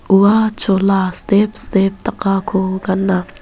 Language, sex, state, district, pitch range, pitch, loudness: Garo, female, Meghalaya, West Garo Hills, 190-205 Hz, 195 Hz, -15 LUFS